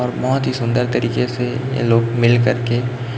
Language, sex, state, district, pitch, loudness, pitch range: Hindi, male, Chhattisgarh, Raipur, 125 Hz, -18 LUFS, 120-125 Hz